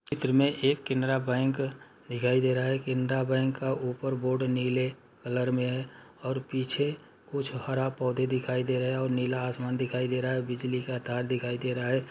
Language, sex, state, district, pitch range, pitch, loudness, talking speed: Hindi, male, Uttar Pradesh, Muzaffarnagar, 125-130 Hz, 130 Hz, -30 LUFS, 200 wpm